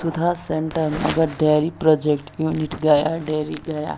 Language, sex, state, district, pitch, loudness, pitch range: Hindi, female, Bihar, Jahanabad, 155 Hz, -21 LUFS, 150-160 Hz